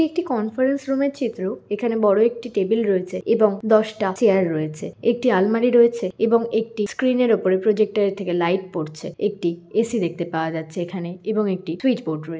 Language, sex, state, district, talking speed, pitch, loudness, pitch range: Bengali, female, West Bengal, Kolkata, 215 wpm, 210 Hz, -21 LUFS, 185-230 Hz